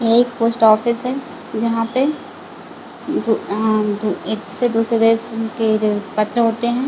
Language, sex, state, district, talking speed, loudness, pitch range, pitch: Hindi, female, Chhattisgarh, Bilaspur, 150 wpm, -18 LUFS, 215-240 Hz, 225 Hz